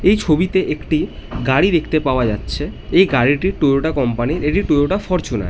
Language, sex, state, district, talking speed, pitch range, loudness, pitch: Bengali, male, West Bengal, North 24 Parganas, 175 wpm, 130-185 Hz, -17 LUFS, 155 Hz